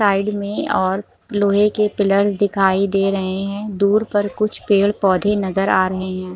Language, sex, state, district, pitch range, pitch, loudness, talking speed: Hindi, female, Bihar, Supaul, 195-205 Hz, 200 Hz, -18 LUFS, 170 wpm